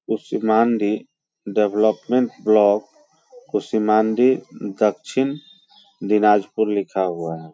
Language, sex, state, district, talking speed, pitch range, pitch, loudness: Hindi, male, Bihar, Muzaffarpur, 70 wpm, 105-125 Hz, 110 Hz, -20 LUFS